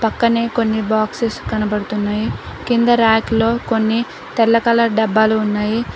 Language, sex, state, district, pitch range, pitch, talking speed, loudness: Telugu, female, Telangana, Mahabubabad, 215-230 Hz, 225 Hz, 110 wpm, -17 LUFS